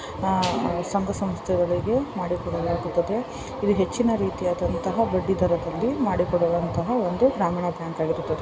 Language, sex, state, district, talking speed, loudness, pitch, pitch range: Kannada, female, Karnataka, Bellary, 100 wpm, -24 LUFS, 180 Hz, 170-200 Hz